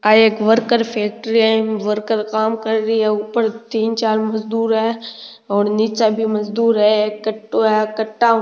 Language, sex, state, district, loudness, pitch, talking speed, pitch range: Rajasthani, male, Rajasthan, Nagaur, -17 LUFS, 220 Hz, 190 wpm, 215-225 Hz